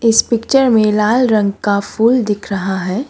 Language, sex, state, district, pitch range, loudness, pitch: Hindi, female, Assam, Kamrup Metropolitan, 200-235 Hz, -14 LUFS, 215 Hz